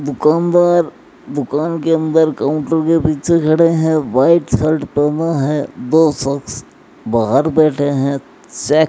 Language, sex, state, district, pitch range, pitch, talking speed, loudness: Hindi, male, Rajasthan, Bikaner, 140-160 Hz, 155 Hz, 135 wpm, -15 LUFS